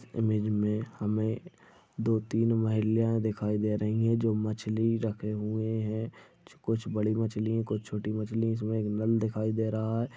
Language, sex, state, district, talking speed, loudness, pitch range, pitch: Hindi, male, Maharashtra, Sindhudurg, 175 wpm, -30 LUFS, 105-115 Hz, 110 Hz